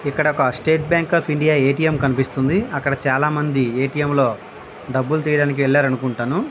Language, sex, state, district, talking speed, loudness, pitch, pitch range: Telugu, male, Andhra Pradesh, Visakhapatnam, 185 wpm, -19 LUFS, 140 Hz, 135-150 Hz